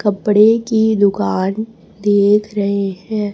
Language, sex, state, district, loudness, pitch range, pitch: Hindi, female, Chhattisgarh, Raipur, -15 LUFS, 200-220 Hz, 210 Hz